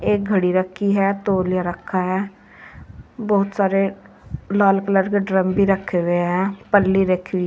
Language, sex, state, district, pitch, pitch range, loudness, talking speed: Hindi, female, Uttar Pradesh, Saharanpur, 195 Hz, 185-200 Hz, -19 LUFS, 160 wpm